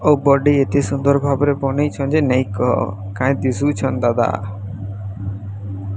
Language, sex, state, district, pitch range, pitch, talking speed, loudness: Odia, female, Odisha, Sambalpur, 100-140 Hz, 130 Hz, 110 wpm, -18 LUFS